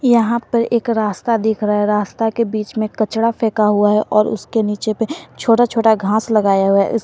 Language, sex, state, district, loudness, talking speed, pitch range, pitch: Hindi, female, Jharkhand, Garhwa, -16 LUFS, 215 wpm, 210-230 Hz, 220 Hz